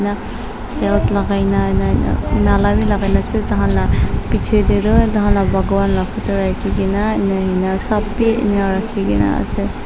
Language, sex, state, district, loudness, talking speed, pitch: Nagamese, female, Nagaland, Dimapur, -17 LUFS, 185 wpm, 190 Hz